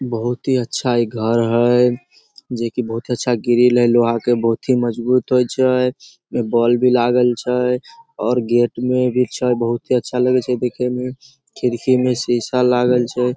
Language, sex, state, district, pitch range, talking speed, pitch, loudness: Maithili, male, Bihar, Samastipur, 120-125 Hz, 170 wpm, 125 Hz, -17 LUFS